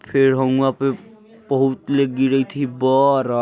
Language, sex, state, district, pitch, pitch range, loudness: Bajjika, male, Bihar, Vaishali, 135 Hz, 130-140 Hz, -18 LUFS